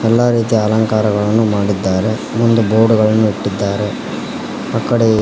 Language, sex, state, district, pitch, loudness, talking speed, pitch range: Kannada, male, Karnataka, Koppal, 110 Hz, -15 LUFS, 115 wpm, 105-115 Hz